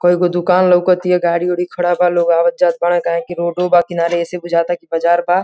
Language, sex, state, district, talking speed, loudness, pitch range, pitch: Hindi, female, Uttar Pradesh, Gorakhpur, 255 wpm, -15 LUFS, 170-180 Hz, 175 Hz